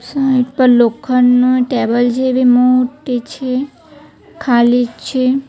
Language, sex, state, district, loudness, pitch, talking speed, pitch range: Gujarati, female, Gujarat, Valsad, -13 LUFS, 250 Hz, 100 wpm, 245-260 Hz